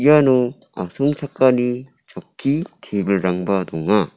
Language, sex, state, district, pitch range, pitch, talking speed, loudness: Garo, male, Meghalaya, South Garo Hills, 100-140 Hz, 125 Hz, 70 wpm, -19 LUFS